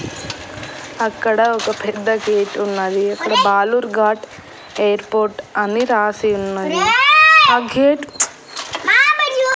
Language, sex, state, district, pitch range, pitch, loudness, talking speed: Telugu, female, Andhra Pradesh, Annamaya, 205-265 Hz, 220 Hz, -15 LUFS, 95 wpm